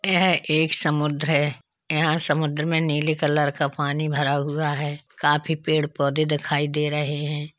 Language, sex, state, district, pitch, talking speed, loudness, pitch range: Hindi, male, Uttar Pradesh, Hamirpur, 150 Hz, 165 wpm, -23 LUFS, 145-155 Hz